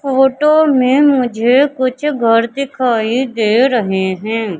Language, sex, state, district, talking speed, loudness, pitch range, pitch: Hindi, female, Madhya Pradesh, Katni, 115 wpm, -13 LUFS, 230-275 Hz, 255 Hz